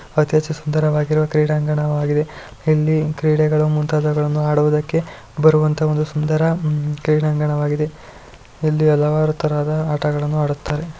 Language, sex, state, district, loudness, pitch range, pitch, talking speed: Kannada, male, Karnataka, Shimoga, -18 LUFS, 150-155 Hz, 150 Hz, 105 wpm